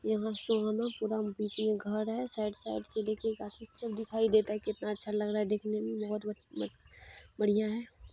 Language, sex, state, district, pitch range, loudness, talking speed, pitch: Hindi, female, Bihar, Jamui, 210-220 Hz, -34 LUFS, 205 wpm, 215 Hz